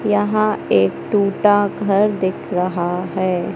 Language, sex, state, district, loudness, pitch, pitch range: Hindi, male, Madhya Pradesh, Katni, -18 LUFS, 195 Hz, 180-205 Hz